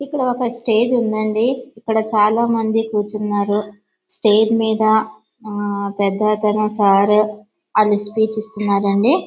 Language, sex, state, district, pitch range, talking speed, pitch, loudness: Telugu, male, Andhra Pradesh, Visakhapatnam, 210-225 Hz, 85 wpm, 215 Hz, -17 LUFS